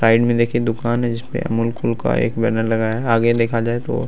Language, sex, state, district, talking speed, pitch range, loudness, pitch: Hindi, male, Bihar, Araria, 280 wpm, 115-120 Hz, -19 LUFS, 115 Hz